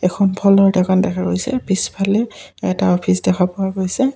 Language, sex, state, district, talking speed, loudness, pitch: Assamese, male, Assam, Kamrup Metropolitan, 175 wpm, -17 LUFS, 190 Hz